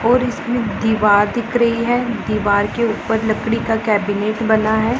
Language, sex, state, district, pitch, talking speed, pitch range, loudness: Hindi, female, Punjab, Pathankot, 225 Hz, 170 wpm, 215-235 Hz, -17 LUFS